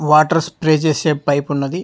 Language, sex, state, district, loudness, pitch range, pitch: Telugu, male, Telangana, Hyderabad, -16 LUFS, 145-160 Hz, 155 Hz